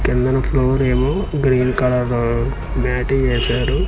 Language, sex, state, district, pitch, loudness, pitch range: Telugu, male, Andhra Pradesh, Manyam, 125 Hz, -18 LUFS, 125-135 Hz